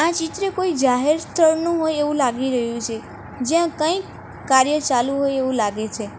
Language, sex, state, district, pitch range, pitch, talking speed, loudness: Gujarati, female, Gujarat, Valsad, 250-325 Hz, 280 Hz, 165 wpm, -20 LUFS